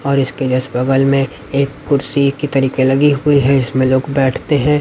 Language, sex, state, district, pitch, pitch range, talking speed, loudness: Hindi, male, Haryana, Rohtak, 135 Hz, 130-140 Hz, 200 wpm, -15 LUFS